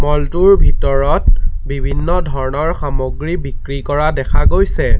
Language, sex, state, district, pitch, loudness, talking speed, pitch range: Assamese, male, Assam, Sonitpur, 140 Hz, -16 LUFS, 120 wpm, 135-155 Hz